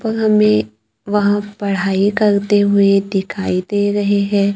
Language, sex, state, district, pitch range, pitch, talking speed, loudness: Hindi, female, Maharashtra, Gondia, 195-205 Hz, 200 Hz, 130 wpm, -15 LUFS